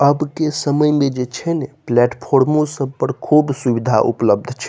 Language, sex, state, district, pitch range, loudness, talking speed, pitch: Maithili, male, Bihar, Saharsa, 130-150 Hz, -17 LUFS, 190 wpm, 145 Hz